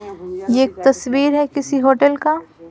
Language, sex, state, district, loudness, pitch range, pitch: Hindi, female, Bihar, Patna, -17 LUFS, 200-285 Hz, 270 Hz